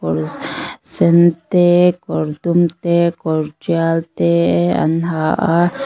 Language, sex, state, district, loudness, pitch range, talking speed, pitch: Mizo, female, Mizoram, Aizawl, -16 LUFS, 155-175 Hz, 125 wpm, 165 Hz